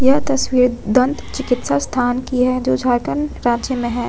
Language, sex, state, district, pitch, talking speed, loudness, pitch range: Hindi, female, Jharkhand, Ranchi, 250 Hz, 175 wpm, -18 LUFS, 240-265 Hz